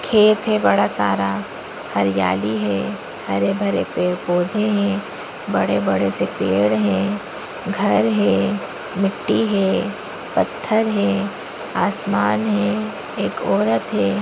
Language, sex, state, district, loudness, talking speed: Hindi, female, Bihar, Madhepura, -20 LUFS, 100 wpm